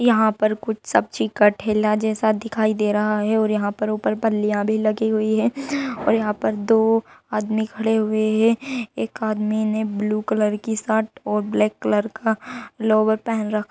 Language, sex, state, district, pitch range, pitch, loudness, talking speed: Hindi, male, Uttar Pradesh, Etah, 215-220 Hz, 215 Hz, -21 LUFS, 185 wpm